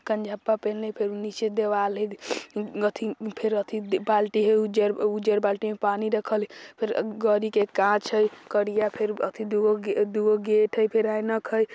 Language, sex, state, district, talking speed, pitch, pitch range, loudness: Bajjika, female, Bihar, Vaishali, 180 wpm, 215 Hz, 210-220 Hz, -25 LUFS